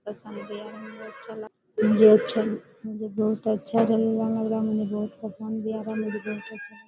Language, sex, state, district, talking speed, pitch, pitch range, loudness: Hindi, female, Chhattisgarh, Korba, 175 wpm, 220 Hz, 215-220 Hz, -24 LUFS